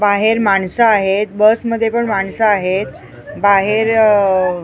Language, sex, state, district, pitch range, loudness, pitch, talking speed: Marathi, female, Maharashtra, Mumbai Suburban, 195-220 Hz, -14 LUFS, 205 Hz, 130 wpm